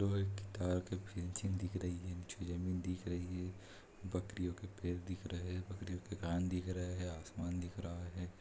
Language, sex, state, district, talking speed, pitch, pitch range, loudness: Hindi, male, Bihar, East Champaran, 195 wpm, 90 Hz, 90-95 Hz, -43 LUFS